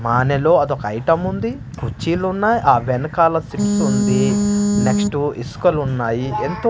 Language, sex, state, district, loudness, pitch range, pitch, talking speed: Telugu, male, Andhra Pradesh, Manyam, -18 LUFS, 140-205 Hz, 170 Hz, 90 wpm